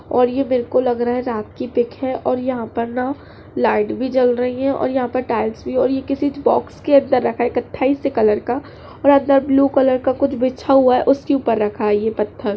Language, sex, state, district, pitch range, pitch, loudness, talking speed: Hindi, female, Uttar Pradesh, Jalaun, 240-270 Hz, 255 Hz, -18 LUFS, 250 wpm